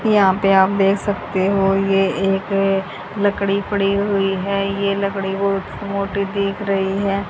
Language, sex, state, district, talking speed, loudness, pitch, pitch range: Hindi, female, Haryana, Charkhi Dadri, 155 wpm, -19 LUFS, 195 Hz, 195-200 Hz